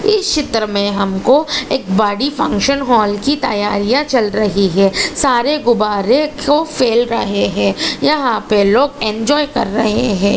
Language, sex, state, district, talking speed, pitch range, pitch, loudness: Hindi, female, Chhattisgarh, Balrampur, 150 wpm, 205-285 Hz, 230 Hz, -14 LUFS